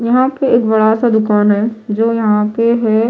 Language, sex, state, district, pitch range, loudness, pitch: Hindi, female, Chhattisgarh, Raipur, 215-235 Hz, -13 LUFS, 225 Hz